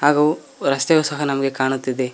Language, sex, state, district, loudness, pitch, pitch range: Kannada, male, Karnataka, Koppal, -19 LUFS, 135 Hz, 135-150 Hz